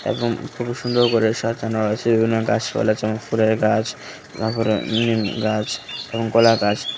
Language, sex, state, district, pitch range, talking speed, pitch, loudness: Bengali, male, Tripura, West Tripura, 110-115 Hz, 135 wpm, 110 Hz, -20 LUFS